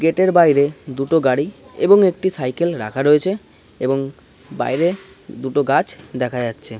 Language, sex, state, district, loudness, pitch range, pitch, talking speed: Bengali, male, West Bengal, Kolkata, -18 LUFS, 130-175 Hz, 145 Hz, 150 wpm